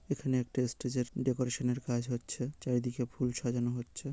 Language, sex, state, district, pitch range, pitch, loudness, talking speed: Bengali, male, West Bengal, North 24 Parganas, 120-130 Hz, 125 Hz, -35 LUFS, 160 wpm